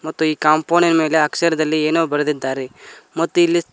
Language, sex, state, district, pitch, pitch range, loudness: Kannada, male, Karnataka, Koppal, 155 Hz, 150-165 Hz, -17 LUFS